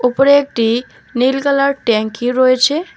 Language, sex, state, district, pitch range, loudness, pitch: Bengali, female, West Bengal, Alipurduar, 245-280 Hz, -14 LUFS, 255 Hz